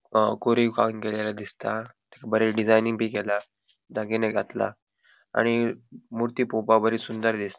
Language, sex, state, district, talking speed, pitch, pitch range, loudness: Konkani, male, Goa, North and South Goa, 135 wpm, 110 Hz, 110-115 Hz, -25 LUFS